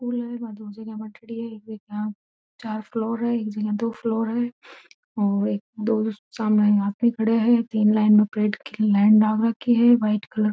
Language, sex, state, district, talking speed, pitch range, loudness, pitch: Marwari, female, Rajasthan, Nagaur, 180 wpm, 210-230 Hz, -22 LUFS, 220 Hz